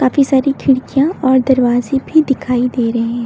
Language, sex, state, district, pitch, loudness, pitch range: Hindi, female, Uttar Pradesh, Lucknow, 260 Hz, -14 LUFS, 245-275 Hz